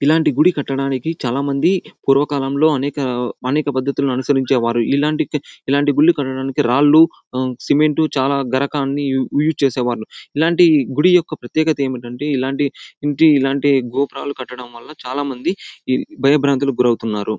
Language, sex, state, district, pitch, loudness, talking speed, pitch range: Telugu, male, Andhra Pradesh, Anantapur, 140 Hz, -17 LUFS, 130 wpm, 130-150 Hz